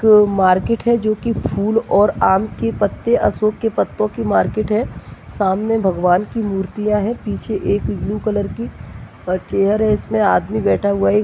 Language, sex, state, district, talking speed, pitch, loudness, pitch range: Hindi, female, Chhattisgarh, Jashpur, 175 wpm, 205 Hz, -17 LUFS, 185-215 Hz